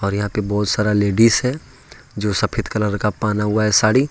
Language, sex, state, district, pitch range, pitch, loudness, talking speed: Hindi, male, Jharkhand, Ranchi, 105-115 Hz, 105 Hz, -18 LUFS, 205 wpm